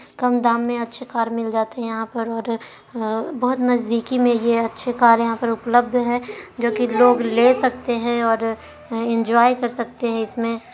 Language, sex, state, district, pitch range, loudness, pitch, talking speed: Hindi, female, Bihar, Jahanabad, 230-245 Hz, -20 LUFS, 235 Hz, 185 wpm